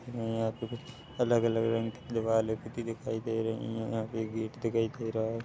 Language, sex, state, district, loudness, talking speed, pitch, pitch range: Hindi, male, Chhattisgarh, Rajnandgaon, -33 LUFS, 220 wpm, 115 Hz, 110-115 Hz